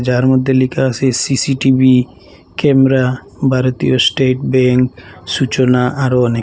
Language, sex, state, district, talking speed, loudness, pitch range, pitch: Bengali, male, Assam, Hailakandi, 110 wpm, -13 LUFS, 125-130 Hz, 130 Hz